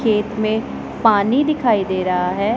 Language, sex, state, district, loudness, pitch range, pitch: Hindi, male, Punjab, Pathankot, -18 LUFS, 200-230 Hz, 215 Hz